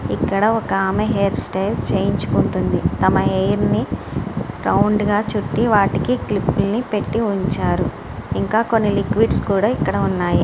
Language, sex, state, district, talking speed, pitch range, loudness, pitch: Telugu, female, Andhra Pradesh, Srikakulam, 120 wpm, 200-220 Hz, -19 LUFS, 210 Hz